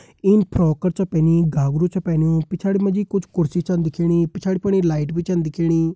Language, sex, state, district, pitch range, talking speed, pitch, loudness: Hindi, male, Uttarakhand, Uttarkashi, 165-190 Hz, 220 wpm, 175 Hz, -19 LUFS